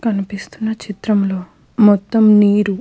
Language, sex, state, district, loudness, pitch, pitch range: Telugu, female, Andhra Pradesh, Krishna, -15 LUFS, 205 Hz, 200-220 Hz